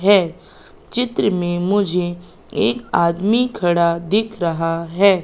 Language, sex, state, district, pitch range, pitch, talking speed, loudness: Hindi, female, Madhya Pradesh, Katni, 170-210 Hz, 180 Hz, 115 wpm, -19 LUFS